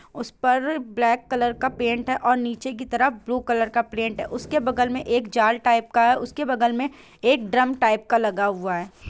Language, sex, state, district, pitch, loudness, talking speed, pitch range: Hindi, female, Bihar, Saran, 240 Hz, -22 LUFS, 215 wpm, 230-255 Hz